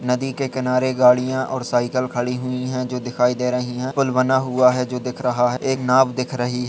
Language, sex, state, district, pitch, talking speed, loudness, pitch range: Hindi, male, Uttar Pradesh, Budaun, 125 Hz, 240 wpm, -20 LUFS, 125-130 Hz